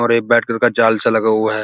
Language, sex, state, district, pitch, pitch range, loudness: Hindi, male, Uttar Pradesh, Muzaffarnagar, 115 Hz, 110-115 Hz, -15 LUFS